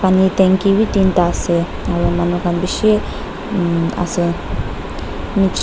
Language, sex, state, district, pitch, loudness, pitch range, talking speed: Nagamese, female, Nagaland, Dimapur, 175 Hz, -17 LUFS, 170-190 Hz, 130 wpm